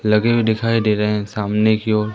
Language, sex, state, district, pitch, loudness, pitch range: Hindi, female, Madhya Pradesh, Umaria, 110 Hz, -18 LUFS, 105-110 Hz